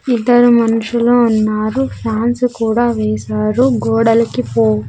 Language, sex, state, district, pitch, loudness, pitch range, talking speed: Telugu, female, Andhra Pradesh, Sri Satya Sai, 230 Hz, -14 LUFS, 215-240 Hz, 100 wpm